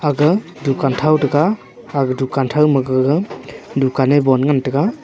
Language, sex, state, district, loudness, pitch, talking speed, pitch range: Wancho, male, Arunachal Pradesh, Longding, -16 LUFS, 145 Hz, 145 wpm, 135-155 Hz